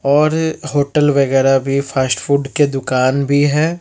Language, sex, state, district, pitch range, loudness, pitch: Hindi, male, Bihar, Katihar, 135-150 Hz, -15 LUFS, 140 Hz